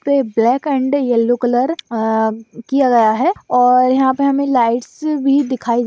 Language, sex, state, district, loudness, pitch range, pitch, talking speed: Hindi, female, Bihar, Madhepura, -15 LUFS, 235-275 Hz, 250 Hz, 175 wpm